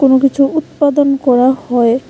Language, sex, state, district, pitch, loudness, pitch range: Bengali, female, Tripura, West Tripura, 275 Hz, -12 LUFS, 250-285 Hz